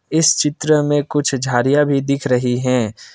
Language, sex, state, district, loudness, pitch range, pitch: Hindi, male, Assam, Kamrup Metropolitan, -16 LUFS, 125-150 Hz, 140 Hz